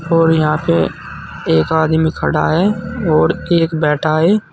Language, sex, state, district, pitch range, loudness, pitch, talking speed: Hindi, male, Uttar Pradesh, Saharanpur, 155-170 Hz, -15 LUFS, 160 Hz, 145 wpm